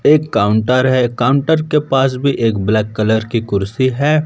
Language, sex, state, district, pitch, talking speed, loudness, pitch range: Hindi, male, Madhya Pradesh, Umaria, 130 Hz, 185 wpm, -15 LUFS, 110-140 Hz